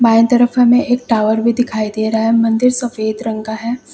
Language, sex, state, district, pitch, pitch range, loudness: Hindi, female, Uttar Pradesh, Lucknow, 230 Hz, 220-245 Hz, -14 LUFS